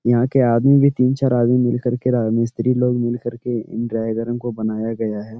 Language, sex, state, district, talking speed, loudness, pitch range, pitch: Hindi, male, Uttar Pradesh, Etah, 245 wpm, -19 LUFS, 115-125 Hz, 120 Hz